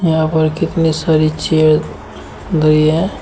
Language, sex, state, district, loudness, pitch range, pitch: Hindi, male, Uttar Pradesh, Shamli, -14 LUFS, 155-165 Hz, 160 Hz